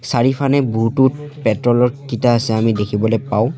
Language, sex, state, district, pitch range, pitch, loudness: Assamese, male, Assam, Sonitpur, 115-130 Hz, 120 Hz, -16 LUFS